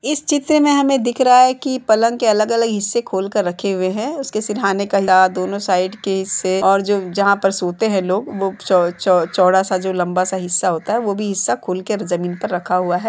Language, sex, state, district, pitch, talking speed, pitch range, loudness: Hindi, female, Uttar Pradesh, Jalaun, 195 Hz, 210 wpm, 185-225 Hz, -17 LUFS